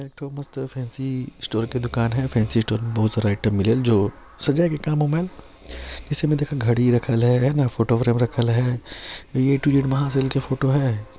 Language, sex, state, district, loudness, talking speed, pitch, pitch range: Chhattisgarhi, male, Chhattisgarh, Sarguja, -22 LUFS, 215 wpm, 125 Hz, 115-140 Hz